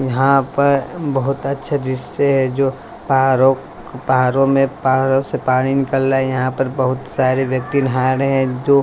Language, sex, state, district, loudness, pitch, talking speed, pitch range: Hindi, male, Bihar, West Champaran, -17 LUFS, 135 Hz, 155 wpm, 130-135 Hz